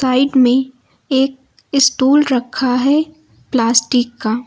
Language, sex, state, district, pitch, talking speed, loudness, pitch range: Hindi, female, Uttar Pradesh, Lucknow, 260 Hz, 105 wpm, -15 LUFS, 245-275 Hz